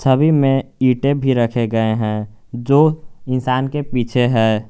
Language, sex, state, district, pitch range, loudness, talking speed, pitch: Hindi, male, Jharkhand, Garhwa, 115-140 Hz, -17 LUFS, 155 wpm, 130 Hz